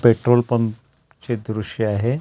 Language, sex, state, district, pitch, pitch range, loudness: Marathi, male, Maharashtra, Gondia, 120 Hz, 110-120 Hz, -21 LUFS